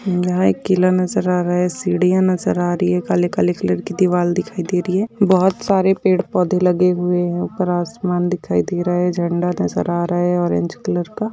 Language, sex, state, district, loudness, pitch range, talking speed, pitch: Hindi, female, Maharashtra, Dhule, -18 LUFS, 175-185 Hz, 220 wpm, 180 Hz